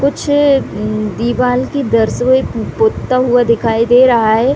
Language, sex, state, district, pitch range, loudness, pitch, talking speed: Hindi, female, Chhattisgarh, Raigarh, 230-275 Hz, -13 LUFS, 250 Hz, 130 wpm